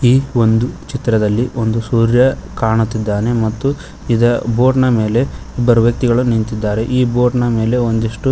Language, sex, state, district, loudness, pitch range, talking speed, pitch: Kannada, male, Karnataka, Koppal, -15 LUFS, 110-125 Hz, 145 wpm, 120 Hz